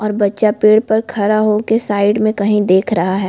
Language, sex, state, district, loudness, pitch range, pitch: Hindi, female, Chhattisgarh, Bilaspur, -14 LUFS, 205-215 Hz, 210 Hz